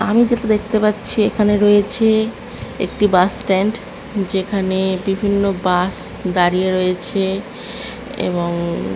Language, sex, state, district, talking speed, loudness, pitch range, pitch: Bengali, female, West Bengal, Kolkata, 100 wpm, -17 LUFS, 185-220 Hz, 200 Hz